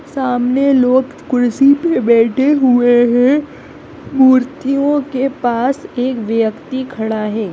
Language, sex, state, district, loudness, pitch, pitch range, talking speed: Hindi, female, Bihar, Madhepura, -14 LUFS, 260 Hz, 240-275 Hz, 110 wpm